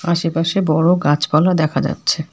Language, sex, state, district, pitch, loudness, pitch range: Bengali, female, West Bengal, Alipurduar, 165 Hz, -16 LUFS, 155-175 Hz